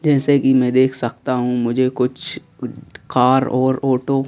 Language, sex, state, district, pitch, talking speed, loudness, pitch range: Hindi, male, Madhya Pradesh, Bhopal, 130 Hz, 170 wpm, -17 LUFS, 125-135 Hz